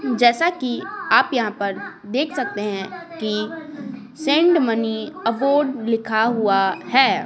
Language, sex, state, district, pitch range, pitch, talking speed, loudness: Hindi, female, Bihar, Patna, 220-280 Hz, 240 Hz, 125 wpm, -20 LUFS